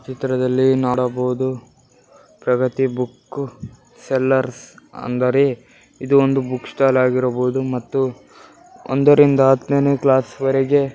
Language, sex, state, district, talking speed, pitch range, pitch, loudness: Kannada, male, Karnataka, Bellary, 95 wpm, 125-135 Hz, 130 Hz, -18 LUFS